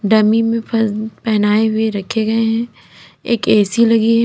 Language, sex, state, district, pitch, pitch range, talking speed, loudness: Hindi, female, Uttar Pradesh, Lalitpur, 220 Hz, 215-230 Hz, 155 wpm, -15 LUFS